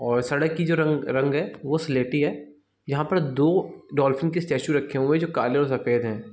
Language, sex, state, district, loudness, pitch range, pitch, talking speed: Hindi, male, Chhattisgarh, Bilaspur, -24 LUFS, 130-155 Hz, 145 Hz, 225 wpm